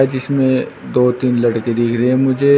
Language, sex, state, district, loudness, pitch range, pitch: Hindi, male, Uttar Pradesh, Shamli, -16 LUFS, 120-135 Hz, 125 Hz